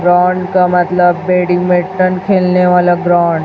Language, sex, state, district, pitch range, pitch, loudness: Hindi, female, Chhattisgarh, Raipur, 175-185 Hz, 180 Hz, -11 LUFS